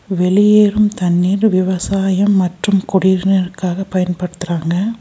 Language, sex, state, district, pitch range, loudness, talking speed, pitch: Tamil, female, Tamil Nadu, Nilgiris, 180-200 Hz, -15 LUFS, 70 wpm, 190 Hz